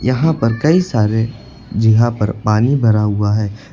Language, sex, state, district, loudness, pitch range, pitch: Hindi, male, Uttar Pradesh, Lucknow, -15 LUFS, 105-125 Hz, 110 Hz